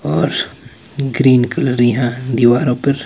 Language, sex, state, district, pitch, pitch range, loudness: Hindi, male, Himachal Pradesh, Shimla, 125 Hz, 120-135 Hz, -15 LUFS